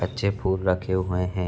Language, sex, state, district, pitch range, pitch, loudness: Hindi, male, Uttar Pradesh, Budaun, 90-95 Hz, 95 Hz, -25 LUFS